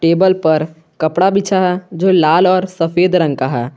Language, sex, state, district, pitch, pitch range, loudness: Hindi, male, Jharkhand, Garhwa, 175 Hz, 160-185 Hz, -14 LUFS